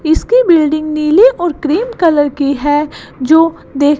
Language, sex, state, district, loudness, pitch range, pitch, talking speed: Hindi, female, Gujarat, Gandhinagar, -12 LUFS, 290-340 Hz, 310 Hz, 150 wpm